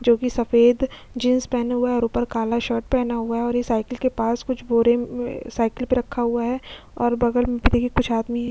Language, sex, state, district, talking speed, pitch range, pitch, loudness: Hindi, female, Uttar Pradesh, Jyotiba Phule Nagar, 240 wpm, 235-250 Hz, 240 Hz, -22 LUFS